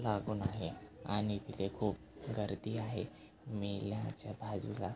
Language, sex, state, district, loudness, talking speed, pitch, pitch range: Marathi, male, Maharashtra, Chandrapur, -40 LUFS, 110 wpm, 105 Hz, 100-110 Hz